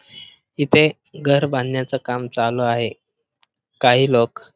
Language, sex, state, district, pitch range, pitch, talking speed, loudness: Marathi, male, Maharashtra, Pune, 125-145 Hz, 130 Hz, 105 wpm, -19 LUFS